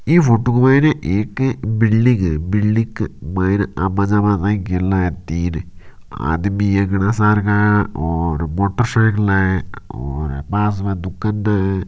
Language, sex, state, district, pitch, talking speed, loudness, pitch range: Marwari, male, Rajasthan, Nagaur, 100 Hz, 140 wpm, -17 LUFS, 90-105 Hz